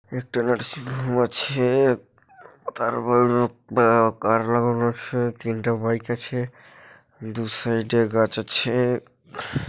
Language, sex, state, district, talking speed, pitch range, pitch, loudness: Bengali, male, West Bengal, Dakshin Dinajpur, 95 wpm, 115-125 Hz, 120 Hz, -22 LUFS